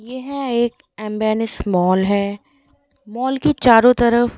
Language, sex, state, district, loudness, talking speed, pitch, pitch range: Hindi, female, Delhi, New Delhi, -17 LUFS, 150 wpm, 235 Hz, 210-255 Hz